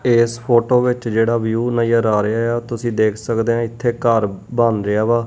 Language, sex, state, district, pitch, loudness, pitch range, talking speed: Punjabi, male, Punjab, Kapurthala, 115 Hz, -17 LUFS, 110-120 Hz, 215 wpm